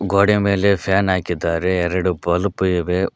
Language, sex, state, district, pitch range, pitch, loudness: Kannada, male, Karnataka, Koppal, 90-100 Hz, 95 Hz, -18 LUFS